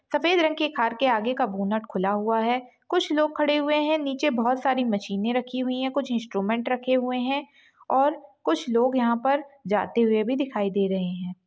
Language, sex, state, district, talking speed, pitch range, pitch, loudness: Kumaoni, female, Uttarakhand, Uttarkashi, 210 wpm, 225-280 Hz, 250 Hz, -25 LUFS